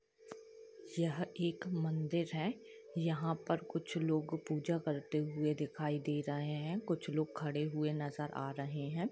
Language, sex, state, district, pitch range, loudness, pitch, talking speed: Hindi, female, Jharkhand, Jamtara, 150-170 Hz, -38 LUFS, 155 Hz, 150 wpm